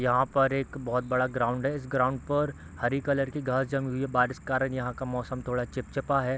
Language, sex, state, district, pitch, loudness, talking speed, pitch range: Hindi, male, Bihar, East Champaran, 130 Hz, -29 LUFS, 245 wpm, 125-135 Hz